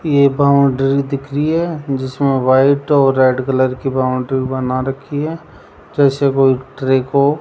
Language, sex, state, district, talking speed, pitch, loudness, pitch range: Hindi, male, Rajasthan, Jaipur, 160 wpm, 135 Hz, -15 LUFS, 130-140 Hz